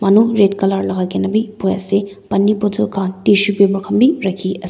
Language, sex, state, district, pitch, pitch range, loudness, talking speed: Nagamese, female, Nagaland, Dimapur, 195 Hz, 190-205 Hz, -16 LUFS, 215 wpm